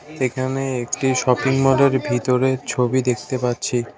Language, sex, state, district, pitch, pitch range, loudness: Bengali, male, West Bengal, Cooch Behar, 130 Hz, 125-135 Hz, -20 LUFS